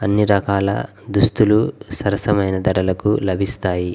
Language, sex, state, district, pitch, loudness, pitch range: Telugu, male, Andhra Pradesh, Guntur, 100 Hz, -18 LUFS, 95-105 Hz